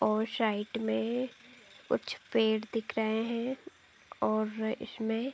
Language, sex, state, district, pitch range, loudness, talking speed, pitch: Hindi, female, Uttar Pradesh, Deoria, 220-235 Hz, -33 LUFS, 125 wpm, 225 Hz